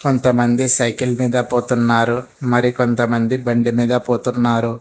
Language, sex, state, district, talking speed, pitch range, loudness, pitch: Telugu, male, Telangana, Hyderabad, 100 wpm, 120-125 Hz, -17 LUFS, 120 Hz